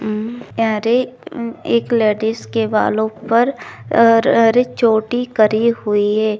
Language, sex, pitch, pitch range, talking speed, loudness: Maithili, female, 225 Hz, 215-235 Hz, 130 wpm, -16 LUFS